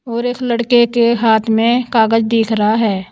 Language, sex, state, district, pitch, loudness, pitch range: Hindi, female, Uttar Pradesh, Saharanpur, 230 Hz, -14 LUFS, 220-240 Hz